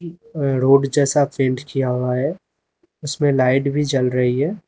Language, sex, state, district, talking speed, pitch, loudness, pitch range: Hindi, male, Uttar Pradesh, Lalitpur, 155 wpm, 140 Hz, -19 LUFS, 130-150 Hz